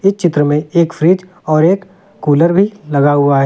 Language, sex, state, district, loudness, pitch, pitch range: Hindi, male, Uttar Pradesh, Lucknow, -13 LUFS, 170 Hz, 150-190 Hz